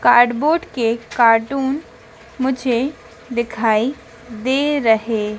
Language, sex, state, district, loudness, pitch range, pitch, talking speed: Hindi, female, Madhya Pradesh, Dhar, -18 LUFS, 230-265 Hz, 240 Hz, 80 wpm